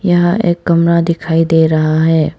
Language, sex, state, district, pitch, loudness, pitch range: Hindi, female, Arunachal Pradesh, Papum Pare, 165 Hz, -12 LUFS, 160-170 Hz